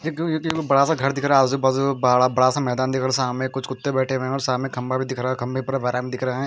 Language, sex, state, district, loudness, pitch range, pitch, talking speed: Hindi, male, Bihar, Patna, -21 LUFS, 130-135 Hz, 130 Hz, 285 wpm